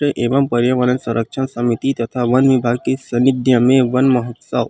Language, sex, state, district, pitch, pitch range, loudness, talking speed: Chhattisgarhi, male, Chhattisgarh, Rajnandgaon, 125 Hz, 120-130 Hz, -16 LUFS, 155 wpm